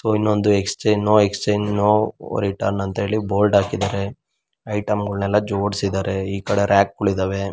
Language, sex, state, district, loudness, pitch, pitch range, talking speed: Kannada, female, Karnataka, Mysore, -20 LUFS, 100 Hz, 100-105 Hz, 125 wpm